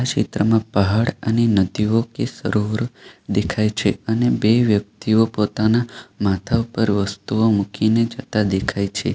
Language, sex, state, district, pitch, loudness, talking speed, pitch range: Gujarati, male, Gujarat, Valsad, 110 Hz, -19 LUFS, 125 wpm, 100-115 Hz